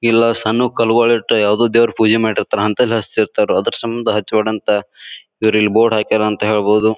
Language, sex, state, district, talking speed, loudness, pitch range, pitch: Kannada, male, Karnataka, Bijapur, 190 wpm, -15 LUFS, 105-115 Hz, 110 Hz